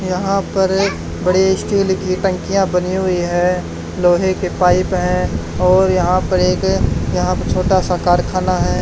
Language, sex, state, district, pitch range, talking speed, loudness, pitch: Hindi, male, Haryana, Charkhi Dadri, 180-190 Hz, 155 wpm, -16 LUFS, 185 Hz